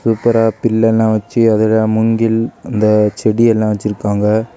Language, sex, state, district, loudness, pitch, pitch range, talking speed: Tamil, male, Tamil Nadu, Kanyakumari, -14 LUFS, 110 Hz, 105-115 Hz, 130 wpm